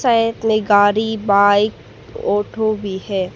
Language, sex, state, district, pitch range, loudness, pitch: Hindi, female, Arunachal Pradesh, Papum Pare, 205-220 Hz, -17 LUFS, 210 Hz